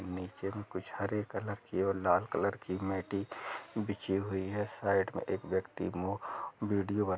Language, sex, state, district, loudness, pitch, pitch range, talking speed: Hindi, male, Chhattisgarh, Rajnandgaon, -36 LUFS, 100 Hz, 95-105 Hz, 175 wpm